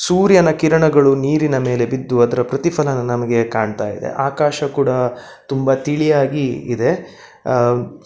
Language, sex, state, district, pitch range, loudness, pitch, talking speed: Kannada, male, Karnataka, Dakshina Kannada, 120-150 Hz, -16 LUFS, 135 Hz, 125 wpm